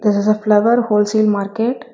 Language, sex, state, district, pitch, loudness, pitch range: English, female, Telangana, Hyderabad, 215 Hz, -15 LUFS, 210-225 Hz